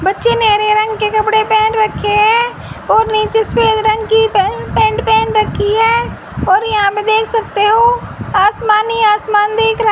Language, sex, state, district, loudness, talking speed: Hindi, female, Haryana, Jhajjar, -12 LUFS, 180 wpm